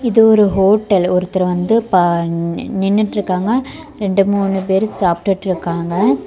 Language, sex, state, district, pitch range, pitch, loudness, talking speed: Tamil, female, Tamil Nadu, Kanyakumari, 180-215 Hz, 195 Hz, -15 LUFS, 105 wpm